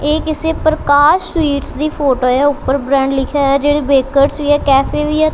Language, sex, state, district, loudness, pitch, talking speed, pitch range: Punjabi, female, Punjab, Kapurthala, -13 LUFS, 285 Hz, 190 wpm, 275-305 Hz